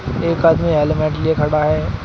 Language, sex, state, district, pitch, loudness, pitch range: Hindi, male, Uttar Pradesh, Shamli, 155 Hz, -16 LUFS, 150-160 Hz